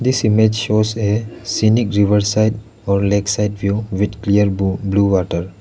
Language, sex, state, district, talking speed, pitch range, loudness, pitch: English, male, Arunachal Pradesh, Lower Dibang Valley, 160 wpm, 100-110 Hz, -17 LUFS, 105 Hz